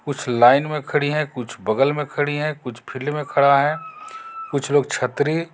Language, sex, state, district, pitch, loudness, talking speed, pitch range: Hindi, male, Jharkhand, Garhwa, 145 Hz, -20 LUFS, 195 wpm, 140-155 Hz